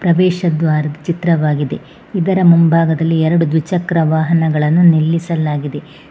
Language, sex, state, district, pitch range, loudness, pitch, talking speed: Kannada, female, Karnataka, Bangalore, 155-170 Hz, -14 LUFS, 165 Hz, 90 wpm